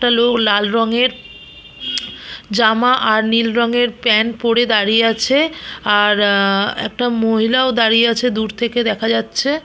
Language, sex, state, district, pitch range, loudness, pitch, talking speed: Bengali, female, West Bengal, Purulia, 220-245 Hz, -15 LUFS, 230 Hz, 150 wpm